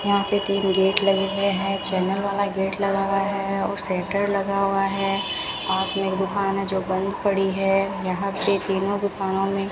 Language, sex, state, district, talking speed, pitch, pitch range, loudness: Hindi, female, Rajasthan, Bikaner, 205 wpm, 195 Hz, 195-200 Hz, -23 LUFS